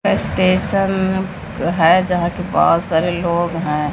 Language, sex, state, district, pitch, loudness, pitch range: Hindi, female, Bihar, Katihar, 175 Hz, -17 LUFS, 170-185 Hz